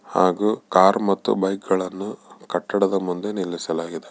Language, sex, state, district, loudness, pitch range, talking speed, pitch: Kannada, male, Karnataka, Bellary, -22 LUFS, 90-100 Hz, 115 wpm, 95 Hz